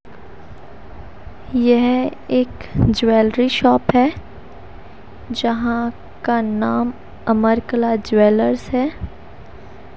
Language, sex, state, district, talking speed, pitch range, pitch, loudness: Hindi, female, Haryana, Rohtak, 65 wpm, 220-245 Hz, 235 Hz, -18 LUFS